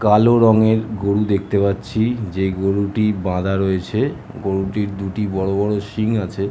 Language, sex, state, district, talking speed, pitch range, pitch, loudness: Bengali, male, West Bengal, Jhargram, 145 wpm, 95-110 Hz, 100 Hz, -19 LUFS